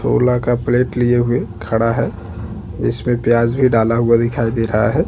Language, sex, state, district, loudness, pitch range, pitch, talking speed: Hindi, male, Chhattisgarh, Bastar, -16 LUFS, 110-120 Hz, 115 Hz, 190 wpm